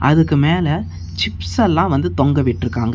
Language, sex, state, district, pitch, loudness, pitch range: Tamil, male, Tamil Nadu, Namakkal, 120 Hz, -17 LUFS, 90-145 Hz